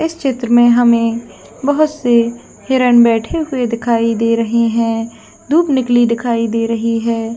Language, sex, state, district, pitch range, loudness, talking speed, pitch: Hindi, female, Jharkhand, Jamtara, 230-250 Hz, -14 LUFS, 155 wpm, 235 Hz